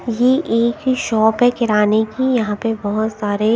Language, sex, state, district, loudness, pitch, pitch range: Hindi, female, Punjab, Kapurthala, -17 LUFS, 225 Hz, 215-245 Hz